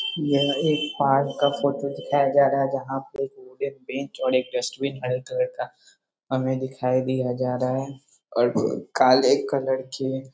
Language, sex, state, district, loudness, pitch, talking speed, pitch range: Hindi, male, Bihar, Muzaffarpur, -24 LUFS, 135 Hz, 175 wpm, 130-140 Hz